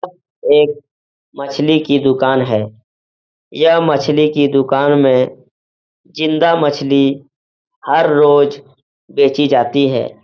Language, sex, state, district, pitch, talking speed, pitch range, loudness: Hindi, male, Uttar Pradesh, Etah, 140 Hz, 100 wpm, 135-155 Hz, -13 LUFS